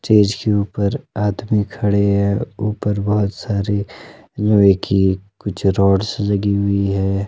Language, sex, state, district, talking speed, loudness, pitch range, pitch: Hindi, male, Himachal Pradesh, Shimla, 130 wpm, -18 LUFS, 100-105 Hz, 100 Hz